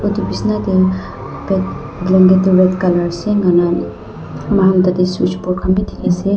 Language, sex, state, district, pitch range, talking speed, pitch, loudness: Nagamese, female, Nagaland, Dimapur, 175-195 Hz, 190 wpm, 185 Hz, -15 LUFS